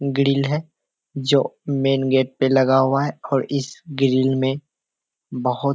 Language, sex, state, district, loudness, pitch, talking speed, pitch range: Hindi, male, Bihar, Kishanganj, -20 LUFS, 135 Hz, 155 wpm, 130-140 Hz